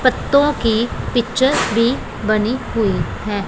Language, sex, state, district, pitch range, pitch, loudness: Hindi, female, Punjab, Pathankot, 215-260 Hz, 230 Hz, -17 LUFS